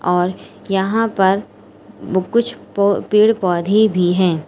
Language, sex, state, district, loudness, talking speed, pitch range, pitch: Hindi, female, Uttar Pradesh, Lalitpur, -17 LUFS, 120 wpm, 180-215 Hz, 195 Hz